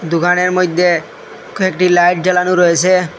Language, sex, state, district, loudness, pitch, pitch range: Bengali, male, Assam, Hailakandi, -13 LUFS, 180 Hz, 175-185 Hz